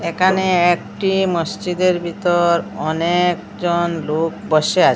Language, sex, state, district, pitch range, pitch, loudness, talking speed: Bengali, female, Assam, Hailakandi, 170-185 Hz, 175 Hz, -18 LUFS, 95 wpm